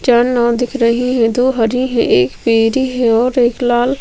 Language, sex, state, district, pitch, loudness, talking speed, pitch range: Hindi, female, Chhattisgarh, Sukma, 240 Hz, -14 LUFS, 225 wpm, 230-250 Hz